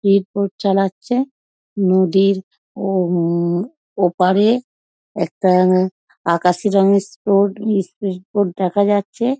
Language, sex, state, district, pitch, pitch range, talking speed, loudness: Bengali, female, West Bengal, Dakshin Dinajpur, 195 Hz, 185-205 Hz, 90 wpm, -17 LUFS